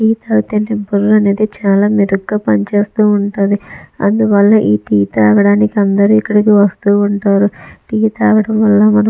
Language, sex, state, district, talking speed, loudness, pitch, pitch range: Telugu, female, Andhra Pradesh, Chittoor, 130 wpm, -12 LUFS, 205 Hz, 200-215 Hz